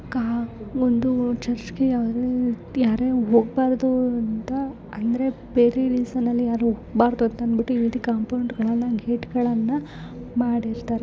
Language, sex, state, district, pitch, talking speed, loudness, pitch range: Kannada, female, Karnataka, Bellary, 240 Hz, 120 wpm, -23 LUFS, 230-250 Hz